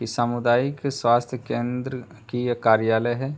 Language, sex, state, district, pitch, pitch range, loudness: Hindi, male, Uttar Pradesh, Hamirpur, 120 Hz, 120-130 Hz, -23 LUFS